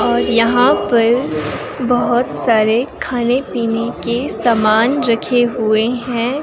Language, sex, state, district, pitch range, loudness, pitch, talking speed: Hindi, female, Himachal Pradesh, Shimla, 230-245 Hz, -15 LUFS, 235 Hz, 110 wpm